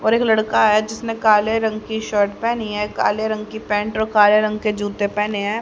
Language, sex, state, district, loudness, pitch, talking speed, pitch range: Hindi, male, Haryana, Rohtak, -19 LUFS, 215 Hz, 235 wpm, 210-220 Hz